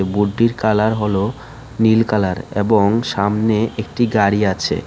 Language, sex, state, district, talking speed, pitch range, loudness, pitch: Bengali, male, Tripura, West Tripura, 125 wpm, 105-115 Hz, -17 LUFS, 110 Hz